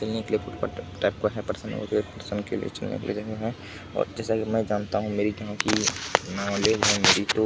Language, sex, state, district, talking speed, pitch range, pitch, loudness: Hindi, male, Bihar, Kishanganj, 115 wpm, 100-110 Hz, 105 Hz, -26 LUFS